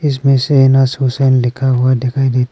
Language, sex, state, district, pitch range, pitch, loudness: Hindi, male, Arunachal Pradesh, Papum Pare, 125-135 Hz, 130 Hz, -13 LUFS